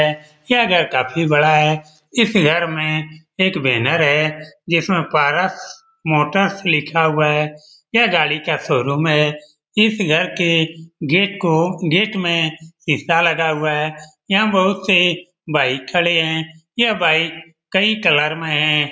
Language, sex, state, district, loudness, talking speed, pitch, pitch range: Hindi, male, Bihar, Lakhisarai, -16 LUFS, 145 wpm, 160 Hz, 150-180 Hz